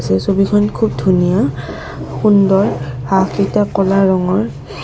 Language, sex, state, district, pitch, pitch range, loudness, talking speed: Assamese, female, Assam, Kamrup Metropolitan, 190 Hz, 140-200 Hz, -14 LUFS, 110 wpm